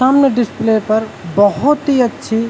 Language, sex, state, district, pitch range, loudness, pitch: Hindi, male, Uttarakhand, Uttarkashi, 220-265 Hz, -14 LUFS, 225 Hz